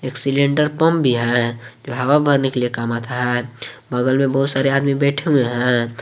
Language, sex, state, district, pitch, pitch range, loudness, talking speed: Hindi, male, Jharkhand, Garhwa, 130 Hz, 120-140 Hz, -18 LUFS, 200 wpm